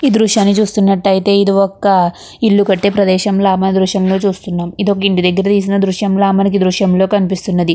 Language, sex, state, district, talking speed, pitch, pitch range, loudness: Telugu, female, Andhra Pradesh, Chittoor, 195 wpm, 195 Hz, 190-200 Hz, -13 LUFS